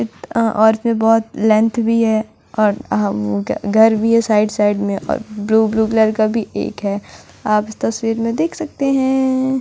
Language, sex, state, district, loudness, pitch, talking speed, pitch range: Hindi, female, Delhi, New Delhi, -16 LUFS, 220 Hz, 155 wpm, 210-230 Hz